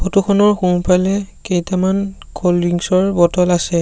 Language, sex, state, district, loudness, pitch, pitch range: Assamese, male, Assam, Sonitpur, -16 LUFS, 185 Hz, 180-195 Hz